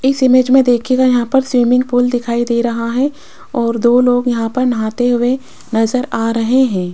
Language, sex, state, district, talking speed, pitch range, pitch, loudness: Hindi, female, Rajasthan, Jaipur, 200 wpm, 235-255 Hz, 245 Hz, -14 LUFS